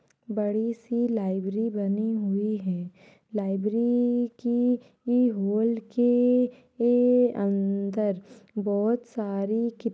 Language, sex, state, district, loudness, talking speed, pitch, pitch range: Hindi, female, Uttar Pradesh, Ghazipur, -26 LUFS, 100 wpm, 225 Hz, 205-240 Hz